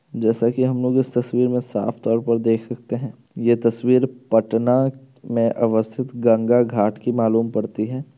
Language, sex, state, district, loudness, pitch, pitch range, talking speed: Hindi, male, Bihar, Darbhanga, -20 LUFS, 120 Hz, 115-125 Hz, 160 wpm